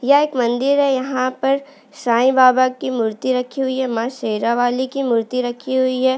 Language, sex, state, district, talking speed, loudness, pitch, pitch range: Hindi, female, Uttarakhand, Uttarkashi, 195 wpm, -18 LUFS, 255 Hz, 245-265 Hz